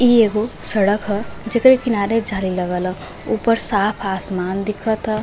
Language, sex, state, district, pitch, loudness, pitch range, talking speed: Bhojpuri, female, Uttar Pradesh, Varanasi, 210 Hz, -18 LUFS, 195-230 Hz, 160 wpm